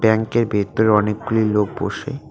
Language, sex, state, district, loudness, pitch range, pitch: Bengali, male, West Bengal, Cooch Behar, -19 LUFS, 105-115 Hz, 110 Hz